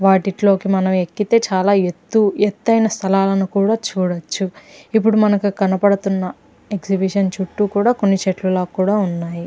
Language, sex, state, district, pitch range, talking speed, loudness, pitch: Telugu, female, Andhra Pradesh, Krishna, 190-210 Hz, 125 wpm, -17 LUFS, 195 Hz